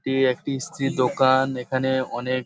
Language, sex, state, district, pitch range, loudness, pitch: Bengali, male, West Bengal, Paschim Medinipur, 130-135 Hz, -23 LUFS, 130 Hz